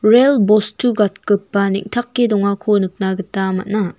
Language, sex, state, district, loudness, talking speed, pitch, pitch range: Garo, female, Meghalaya, North Garo Hills, -16 LUFS, 120 wpm, 205 Hz, 195-220 Hz